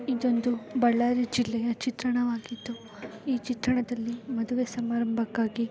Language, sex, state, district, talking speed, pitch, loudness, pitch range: Kannada, female, Karnataka, Bellary, 95 wpm, 240 Hz, -28 LUFS, 230-245 Hz